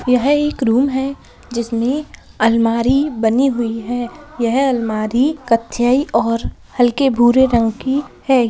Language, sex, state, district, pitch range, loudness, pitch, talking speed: Hindi, female, Bihar, Lakhisarai, 230-270 Hz, -16 LUFS, 245 Hz, 125 wpm